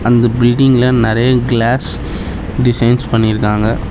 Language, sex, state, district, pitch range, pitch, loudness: Tamil, male, Tamil Nadu, Chennai, 115-125 Hz, 120 Hz, -13 LUFS